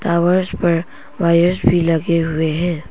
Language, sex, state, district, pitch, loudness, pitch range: Hindi, female, Arunachal Pradesh, Papum Pare, 170 Hz, -17 LUFS, 165-175 Hz